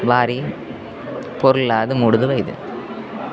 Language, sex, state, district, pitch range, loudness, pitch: Tulu, male, Karnataka, Dakshina Kannada, 115-130 Hz, -19 LUFS, 120 Hz